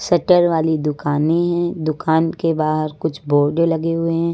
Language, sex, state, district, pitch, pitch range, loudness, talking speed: Hindi, female, Uttar Pradesh, Lucknow, 160 Hz, 155-170 Hz, -18 LUFS, 165 wpm